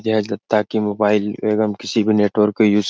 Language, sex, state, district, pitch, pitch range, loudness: Hindi, male, Bihar, Jahanabad, 105 Hz, 105-110 Hz, -18 LUFS